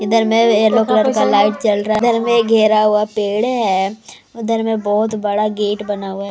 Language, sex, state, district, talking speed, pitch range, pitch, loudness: Hindi, female, Maharashtra, Mumbai Suburban, 210 wpm, 205-225 Hz, 215 Hz, -15 LUFS